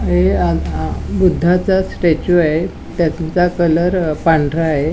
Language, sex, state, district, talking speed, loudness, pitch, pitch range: Marathi, female, Goa, North and South Goa, 145 wpm, -15 LUFS, 165 Hz, 145-175 Hz